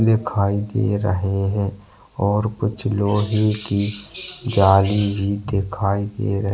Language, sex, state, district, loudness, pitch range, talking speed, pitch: Hindi, male, Chhattisgarh, Bastar, -21 LUFS, 100-105 Hz, 130 wpm, 100 Hz